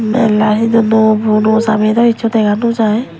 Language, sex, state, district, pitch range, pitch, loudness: Chakma, female, Tripura, West Tripura, 215-230 Hz, 220 Hz, -12 LUFS